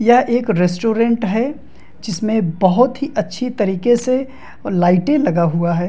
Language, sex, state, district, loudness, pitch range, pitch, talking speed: Hindi, male, Bihar, Madhepura, -17 LUFS, 180-250 Hz, 220 Hz, 155 wpm